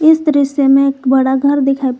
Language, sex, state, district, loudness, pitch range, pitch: Hindi, female, Jharkhand, Garhwa, -12 LUFS, 265-285 Hz, 275 Hz